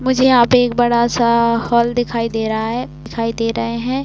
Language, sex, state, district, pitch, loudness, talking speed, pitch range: Hindi, female, Uttar Pradesh, Varanasi, 235 Hz, -16 LUFS, 220 wpm, 230-245 Hz